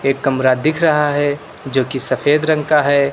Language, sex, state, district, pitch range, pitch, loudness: Hindi, male, Uttar Pradesh, Lucknow, 135-150 Hz, 145 Hz, -16 LUFS